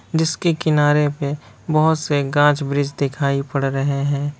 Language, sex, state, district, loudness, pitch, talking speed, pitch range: Hindi, male, Bihar, Kishanganj, -19 LUFS, 145 Hz, 150 wpm, 140-155 Hz